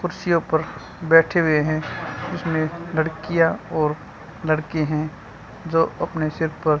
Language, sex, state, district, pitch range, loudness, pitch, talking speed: Hindi, female, Haryana, Charkhi Dadri, 155-165 Hz, -22 LUFS, 160 Hz, 125 wpm